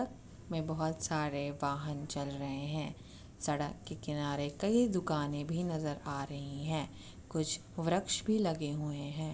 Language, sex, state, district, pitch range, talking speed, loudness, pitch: Hindi, female, Uttar Pradesh, Etah, 145-160 Hz, 155 wpm, -36 LUFS, 150 Hz